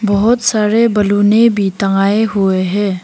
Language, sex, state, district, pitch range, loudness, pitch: Hindi, female, Arunachal Pradesh, Papum Pare, 195-220 Hz, -13 LUFS, 205 Hz